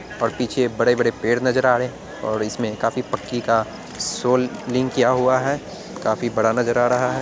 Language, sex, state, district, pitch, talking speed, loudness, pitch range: Angika, male, Bihar, Araria, 120 Hz, 215 wpm, -21 LUFS, 115-125 Hz